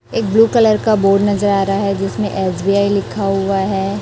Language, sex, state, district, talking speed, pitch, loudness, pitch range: Hindi, female, Chhattisgarh, Raipur, 210 wpm, 200 Hz, -15 LUFS, 195-205 Hz